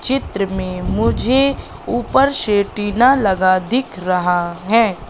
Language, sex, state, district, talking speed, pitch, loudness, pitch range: Hindi, female, Madhya Pradesh, Katni, 120 wpm, 200 Hz, -17 LUFS, 185-255 Hz